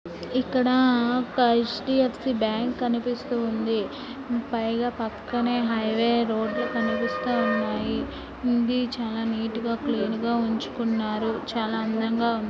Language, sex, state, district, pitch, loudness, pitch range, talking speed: Telugu, female, Andhra Pradesh, Srikakulam, 235 Hz, -25 LUFS, 225-245 Hz, 100 wpm